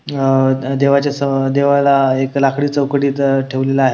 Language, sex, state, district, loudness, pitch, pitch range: Marathi, male, Maharashtra, Sindhudurg, -15 LUFS, 135 Hz, 135-140 Hz